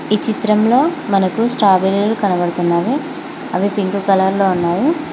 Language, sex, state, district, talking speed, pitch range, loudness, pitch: Telugu, female, Telangana, Mahabubabad, 115 wpm, 190-260 Hz, -15 LUFS, 205 Hz